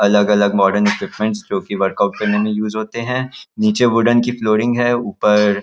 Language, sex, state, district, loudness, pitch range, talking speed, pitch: Hindi, male, Chhattisgarh, Raigarh, -16 LUFS, 105-115 Hz, 190 wpm, 105 Hz